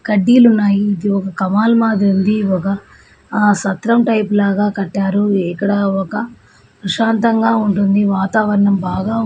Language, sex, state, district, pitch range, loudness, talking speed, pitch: Telugu, female, Andhra Pradesh, Srikakulam, 195-220 Hz, -15 LUFS, 105 wpm, 205 Hz